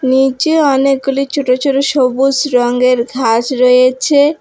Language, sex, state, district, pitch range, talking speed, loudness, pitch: Bengali, female, West Bengal, Alipurduar, 250-275 Hz, 110 wpm, -12 LUFS, 265 Hz